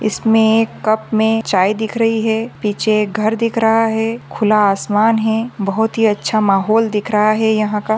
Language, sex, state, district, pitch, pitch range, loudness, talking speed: Hindi, female, Maharashtra, Aurangabad, 220 Hz, 210-225 Hz, -15 LUFS, 180 wpm